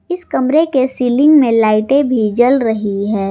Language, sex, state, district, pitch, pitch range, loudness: Hindi, female, Jharkhand, Garhwa, 250 Hz, 215-280 Hz, -13 LUFS